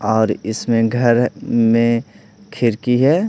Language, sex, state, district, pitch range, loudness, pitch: Hindi, male, Bihar, Patna, 110-125 Hz, -17 LUFS, 115 Hz